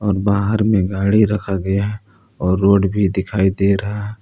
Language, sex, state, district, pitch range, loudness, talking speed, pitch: Hindi, male, Jharkhand, Palamu, 95-105 Hz, -17 LUFS, 185 wpm, 100 Hz